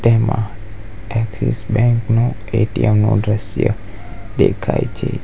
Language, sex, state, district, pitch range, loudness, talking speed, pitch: Gujarati, male, Gujarat, Valsad, 105-115 Hz, -18 LUFS, 105 wpm, 110 Hz